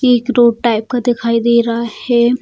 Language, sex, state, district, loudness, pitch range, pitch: Hindi, female, Bihar, Jamui, -14 LUFS, 230-245 Hz, 235 Hz